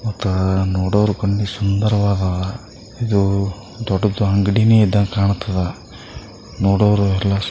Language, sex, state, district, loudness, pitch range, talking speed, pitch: Kannada, male, Karnataka, Bijapur, -18 LUFS, 100-105 Hz, 80 wpm, 100 Hz